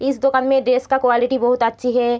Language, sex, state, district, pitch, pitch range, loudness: Hindi, female, Bihar, Kishanganj, 250 Hz, 245-265 Hz, -17 LUFS